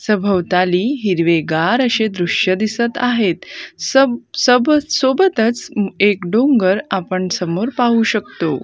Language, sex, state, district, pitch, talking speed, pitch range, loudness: Marathi, female, Maharashtra, Gondia, 215 Hz, 105 wpm, 185-245 Hz, -16 LUFS